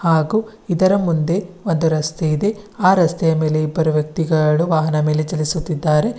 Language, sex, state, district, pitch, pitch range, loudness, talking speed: Kannada, female, Karnataka, Bidar, 165 Hz, 155-185 Hz, -18 LUFS, 135 wpm